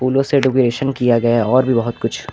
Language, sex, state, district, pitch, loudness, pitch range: Hindi, male, Uttar Pradesh, Lucknow, 130 Hz, -16 LUFS, 120-135 Hz